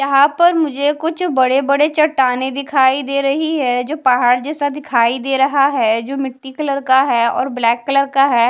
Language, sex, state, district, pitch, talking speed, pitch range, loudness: Hindi, female, Haryana, Charkhi Dadri, 275 Hz, 195 wpm, 255-290 Hz, -15 LUFS